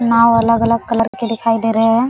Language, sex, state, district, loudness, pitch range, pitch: Hindi, female, Jharkhand, Sahebganj, -15 LUFS, 225-230 Hz, 230 Hz